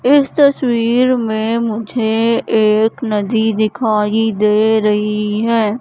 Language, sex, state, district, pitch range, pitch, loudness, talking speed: Hindi, female, Madhya Pradesh, Katni, 215-235 Hz, 220 Hz, -14 LUFS, 105 wpm